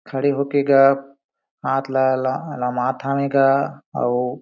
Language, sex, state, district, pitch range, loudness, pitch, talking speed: Surgujia, male, Chhattisgarh, Sarguja, 130-140 Hz, -20 LUFS, 135 Hz, 120 wpm